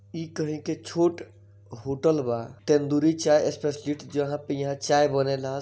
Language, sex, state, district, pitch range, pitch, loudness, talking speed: Bhojpuri, male, Bihar, East Champaran, 135-155 Hz, 145 Hz, -26 LUFS, 150 wpm